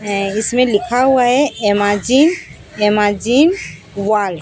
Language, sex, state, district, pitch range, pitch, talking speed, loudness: Hindi, female, Odisha, Sambalpur, 205-255 Hz, 215 Hz, 120 wpm, -14 LUFS